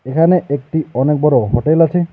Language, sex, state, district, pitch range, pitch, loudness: Bengali, male, West Bengal, Alipurduar, 140-165 Hz, 155 Hz, -14 LUFS